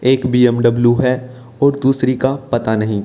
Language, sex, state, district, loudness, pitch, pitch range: Hindi, male, Haryana, Jhajjar, -15 LUFS, 125 Hz, 120-130 Hz